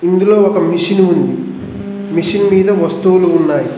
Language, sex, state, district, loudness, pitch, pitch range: Telugu, male, Telangana, Mahabubabad, -12 LUFS, 185 Hz, 170-200 Hz